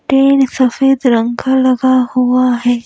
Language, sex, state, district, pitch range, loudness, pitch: Hindi, female, Madhya Pradesh, Bhopal, 245-265 Hz, -12 LUFS, 255 Hz